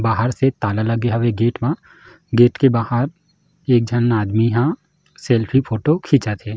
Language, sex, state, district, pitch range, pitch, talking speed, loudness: Chhattisgarhi, male, Chhattisgarh, Jashpur, 115-135 Hz, 120 Hz, 165 wpm, -18 LUFS